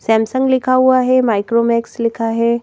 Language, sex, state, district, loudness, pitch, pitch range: Hindi, female, Madhya Pradesh, Bhopal, -15 LUFS, 235 Hz, 230-255 Hz